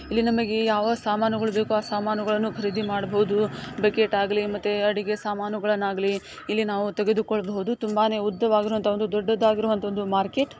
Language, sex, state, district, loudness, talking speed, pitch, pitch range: Kannada, female, Karnataka, Dakshina Kannada, -24 LUFS, 145 wpm, 210 Hz, 205-220 Hz